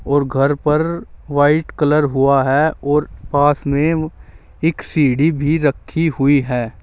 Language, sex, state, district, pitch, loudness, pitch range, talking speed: Hindi, male, Uttar Pradesh, Saharanpur, 145 Hz, -16 LUFS, 140-155 Hz, 140 wpm